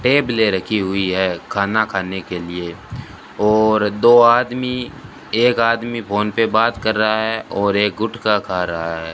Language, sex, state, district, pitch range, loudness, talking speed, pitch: Hindi, male, Rajasthan, Bikaner, 95-115 Hz, -17 LUFS, 165 wpm, 110 Hz